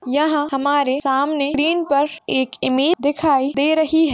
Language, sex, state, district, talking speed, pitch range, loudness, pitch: Hindi, female, Bihar, Madhepura, 160 wpm, 275-310 Hz, -18 LUFS, 285 Hz